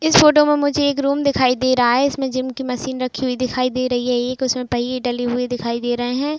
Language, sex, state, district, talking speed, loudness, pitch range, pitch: Hindi, female, Uttar Pradesh, Jalaun, 270 wpm, -18 LUFS, 245-275 Hz, 255 Hz